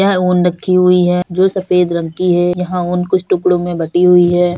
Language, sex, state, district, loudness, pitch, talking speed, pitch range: Hindi, female, Uttar Pradesh, Budaun, -13 LUFS, 180 Hz, 235 wpm, 175-180 Hz